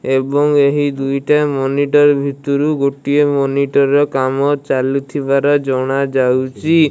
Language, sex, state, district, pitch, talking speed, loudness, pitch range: Odia, male, Odisha, Malkangiri, 140 Hz, 115 wpm, -15 LUFS, 135-145 Hz